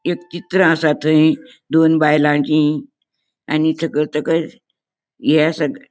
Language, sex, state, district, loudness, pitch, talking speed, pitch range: Konkani, female, Goa, North and South Goa, -16 LUFS, 155 Hz, 100 wpm, 150-165 Hz